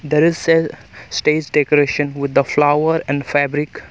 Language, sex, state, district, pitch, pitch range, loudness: English, male, Arunachal Pradesh, Longding, 150 Hz, 145-155 Hz, -17 LUFS